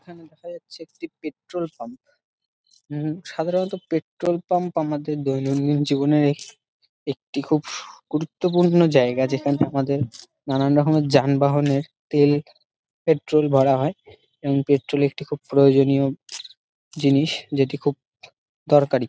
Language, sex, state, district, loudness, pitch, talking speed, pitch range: Bengali, male, West Bengal, Dakshin Dinajpur, -21 LUFS, 145 Hz, 115 wpm, 140-160 Hz